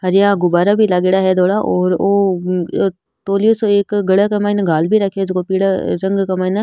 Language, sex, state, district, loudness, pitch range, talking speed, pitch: Rajasthani, female, Rajasthan, Nagaur, -15 LUFS, 185-200 Hz, 210 wpm, 195 Hz